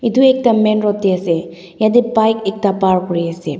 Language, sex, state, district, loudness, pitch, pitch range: Nagamese, female, Nagaland, Dimapur, -15 LUFS, 200 Hz, 180-220 Hz